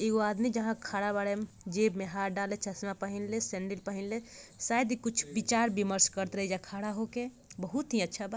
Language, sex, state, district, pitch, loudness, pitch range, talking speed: Bhojpuri, female, Bihar, Gopalganj, 205 Hz, -33 LUFS, 195-225 Hz, 200 wpm